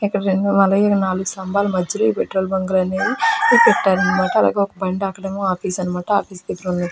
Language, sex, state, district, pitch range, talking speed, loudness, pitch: Telugu, female, Andhra Pradesh, Krishna, 185-200 Hz, 180 wpm, -18 LUFS, 190 Hz